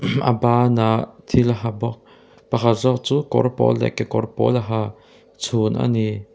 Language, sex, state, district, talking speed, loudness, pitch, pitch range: Mizo, male, Mizoram, Aizawl, 170 wpm, -20 LUFS, 115 Hz, 110-120 Hz